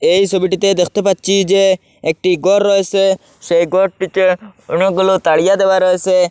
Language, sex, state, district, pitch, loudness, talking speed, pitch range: Bengali, male, Assam, Hailakandi, 190 Hz, -14 LUFS, 135 wpm, 185-195 Hz